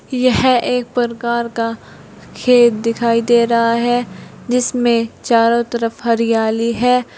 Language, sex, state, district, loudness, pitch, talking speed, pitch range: Hindi, female, Uttar Pradesh, Saharanpur, -15 LUFS, 235 Hz, 115 wpm, 230-245 Hz